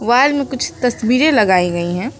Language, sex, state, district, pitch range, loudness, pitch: Hindi, female, West Bengal, Alipurduar, 185-265 Hz, -15 LUFS, 245 Hz